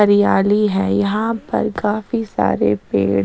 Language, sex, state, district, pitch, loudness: Hindi, female, Chandigarh, Chandigarh, 205 Hz, -17 LUFS